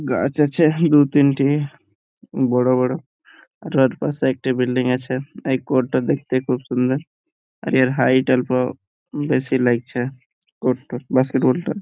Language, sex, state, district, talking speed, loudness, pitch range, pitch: Bengali, male, West Bengal, Purulia, 175 wpm, -19 LUFS, 125-145 Hz, 130 Hz